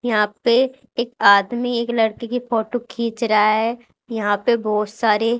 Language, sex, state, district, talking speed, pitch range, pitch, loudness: Hindi, female, Haryana, Charkhi Dadri, 165 wpm, 215-240 Hz, 230 Hz, -19 LUFS